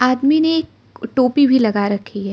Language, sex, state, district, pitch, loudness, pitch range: Hindi, female, Arunachal Pradesh, Lower Dibang Valley, 250 Hz, -16 LUFS, 205-280 Hz